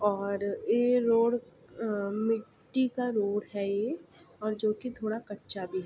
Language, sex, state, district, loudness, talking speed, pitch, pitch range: Hindi, female, Uttar Pradesh, Ghazipur, -31 LUFS, 155 wpm, 210 Hz, 200-230 Hz